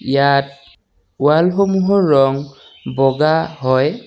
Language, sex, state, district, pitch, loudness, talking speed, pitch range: Assamese, male, Assam, Kamrup Metropolitan, 140 Hz, -15 LUFS, 75 wpm, 135-165 Hz